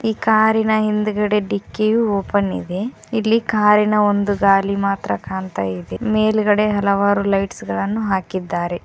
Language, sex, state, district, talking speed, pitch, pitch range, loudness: Kannada, female, Karnataka, Koppal, 120 wpm, 205 Hz, 195-215 Hz, -18 LUFS